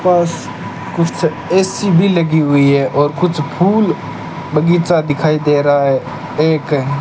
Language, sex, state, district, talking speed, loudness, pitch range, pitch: Hindi, male, Rajasthan, Bikaner, 135 wpm, -14 LUFS, 145-175 Hz, 160 Hz